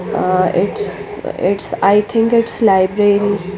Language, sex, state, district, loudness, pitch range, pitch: Hindi, female, Chandigarh, Chandigarh, -15 LUFS, 195-230 Hz, 205 Hz